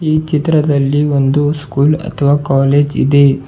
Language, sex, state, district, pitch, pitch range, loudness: Kannada, male, Karnataka, Bidar, 145 Hz, 140-150 Hz, -13 LUFS